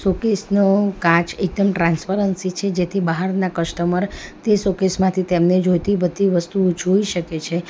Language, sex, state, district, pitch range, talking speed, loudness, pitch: Gujarati, female, Gujarat, Valsad, 175-195 Hz, 150 wpm, -19 LUFS, 185 Hz